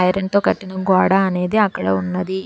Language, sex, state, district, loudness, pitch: Telugu, female, Telangana, Hyderabad, -18 LUFS, 185 Hz